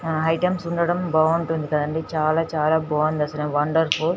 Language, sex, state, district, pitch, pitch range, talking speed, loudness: Telugu, female, Telangana, Nalgonda, 160 Hz, 155-165 Hz, 145 wpm, -22 LUFS